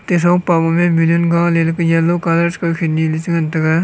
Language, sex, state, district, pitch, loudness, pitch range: Wancho, male, Arunachal Pradesh, Longding, 170 Hz, -15 LUFS, 165-170 Hz